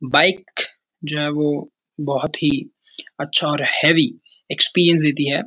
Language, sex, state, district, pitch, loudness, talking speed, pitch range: Hindi, male, Uttarakhand, Uttarkashi, 160 Hz, -18 LUFS, 130 wpm, 145-230 Hz